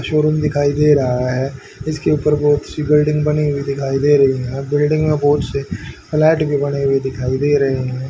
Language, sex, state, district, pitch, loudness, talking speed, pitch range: Hindi, male, Haryana, Rohtak, 145 Hz, -16 LUFS, 210 wpm, 135-150 Hz